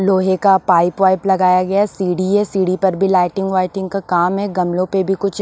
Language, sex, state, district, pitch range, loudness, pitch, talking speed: Hindi, female, Maharashtra, Washim, 185-195 Hz, -16 LUFS, 190 Hz, 230 wpm